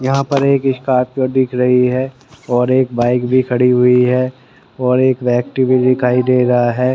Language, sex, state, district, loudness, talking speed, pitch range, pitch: Hindi, male, Haryana, Rohtak, -14 LUFS, 190 wpm, 125-130 Hz, 125 Hz